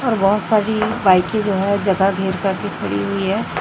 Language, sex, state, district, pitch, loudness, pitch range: Hindi, female, Chhattisgarh, Raipur, 195 Hz, -18 LUFS, 190-215 Hz